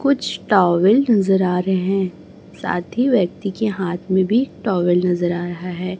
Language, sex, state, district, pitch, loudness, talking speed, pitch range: Hindi, male, Chhattisgarh, Raipur, 190 Hz, -18 LUFS, 180 wpm, 180-205 Hz